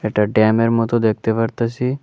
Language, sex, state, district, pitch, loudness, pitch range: Bengali, male, Tripura, West Tripura, 115 Hz, -17 LUFS, 110-115 Hz